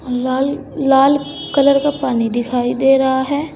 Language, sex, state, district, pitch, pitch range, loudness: Hindi, female, Uttar Pradesh, Saharanpur, 270 Hz, 255-285 Hz, -16 LUFS